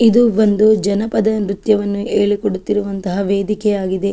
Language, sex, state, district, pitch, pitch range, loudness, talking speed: Kannada, female, Karnataka, Chamarajanagar, 205 Hz, 200-215 Hz, -16 LUFS, 100 wpm